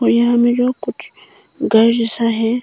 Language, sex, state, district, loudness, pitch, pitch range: Hindi, female, Arunachal Pradesh, Longding, -15 LUFS, 235 Hz, 230-240 Hz